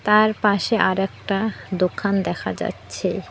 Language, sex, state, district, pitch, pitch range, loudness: Bengali, female, West Bengal, Cooch Behar, 200 Hz, 195-215 Hz, -22 LUFS